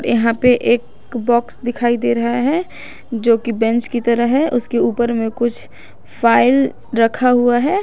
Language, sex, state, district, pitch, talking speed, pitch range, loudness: Hindi, female, Jharkhand, Garhwa, 240 Hz, 170 wpm, 235-245 Hz, -16 LUFS